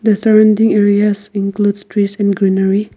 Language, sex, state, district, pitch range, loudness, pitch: English, female, Nagaland, Kohima, 200-215 Hz, -13 LUFS, 205 Hz